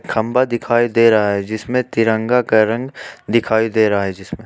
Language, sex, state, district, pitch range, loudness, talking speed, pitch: Hindi, male, Jharkhand, Ranchi, 110-120 Hz, -16 LUFS, 190 wpm, 115 Hz